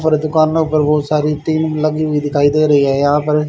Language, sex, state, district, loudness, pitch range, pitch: Hindi, male, Haryana, Charkhi Dadri, -14 LUFS, 150-155 Hz, 150 Hz